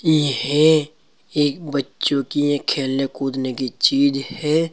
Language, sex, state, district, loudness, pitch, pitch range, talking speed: Hindi, male, Uttar Pradesh, Saharanpur, -20 LUFS, 145 Hz, 135-150 Hz, 125 wpm